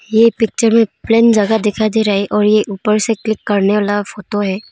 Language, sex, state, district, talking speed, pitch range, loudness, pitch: Hindi, female, Arunachal Pradesh, Longding, 215 wpm, 205-220 Hz, -14 LUFS, 210 Hz